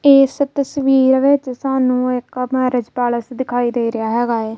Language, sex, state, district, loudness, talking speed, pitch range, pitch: Punjabi, female, Punjab, Kapurthala, -17 LUFS, 155 wpm, 240-270 Hz, 255 Hz